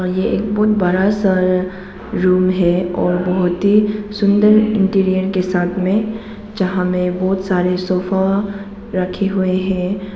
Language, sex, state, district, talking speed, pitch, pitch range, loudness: Hindi, female, Arunachal Pradesh, Papum Pare, 135 wpm, 190 Hz, 185-200 Hz, -16 LUFS